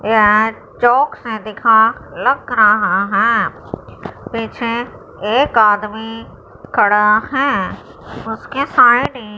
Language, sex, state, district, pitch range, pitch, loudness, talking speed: Hindi, female, Punjab, Fazilka, 215-240 Hz, 225 Hz, -14 LUFS, 90 wpm